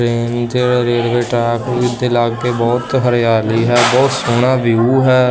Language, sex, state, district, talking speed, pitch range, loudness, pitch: Punjabi, male, Punjab, Kapurthala, 160 wpm, 120-125 Hz, -14 LUFS, 120 Hz